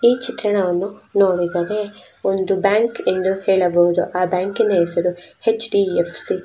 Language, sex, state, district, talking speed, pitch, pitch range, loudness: Kannada, female, Karnataka, Chamarajanagar, 130 wpm, 190 Hz, 180-205 Hz, -18 LUFS